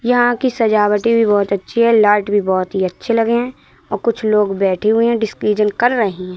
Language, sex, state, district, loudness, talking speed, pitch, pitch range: Hindi, female, Madhya Pradesh, Katni, -15 LUFS, 225 wpm, 210 Hz, 200-230 Hz